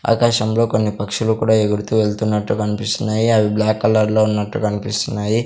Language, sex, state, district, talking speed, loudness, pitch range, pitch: Telugu, male, Andhra Pradesh, Sri Satya Sai, 130 wpm, -18 LUFS, 105-110 Hz, 110 Hz